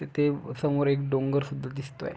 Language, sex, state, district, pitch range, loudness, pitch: Marathi, male, Maharashtra, Pune, 140-145 Hz, -28 LUFS, 140 Hz